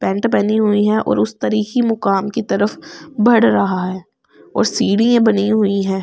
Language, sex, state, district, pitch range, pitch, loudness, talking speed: Hindi, female, Delhi, New Delhi, 195-230 Hz, 210 Hz, -16 LUFS, 180 wpm